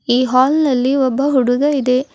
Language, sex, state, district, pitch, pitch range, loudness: Kannada, female, Karnataka, Bidar, 260 Hz, 255-280 Hz, -15 LUFS